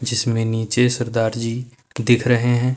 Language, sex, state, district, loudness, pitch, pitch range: Hindi, male, Uttar Pradesh, Lucknow, -19 LUFS, 120 Hz, 115-125 Hz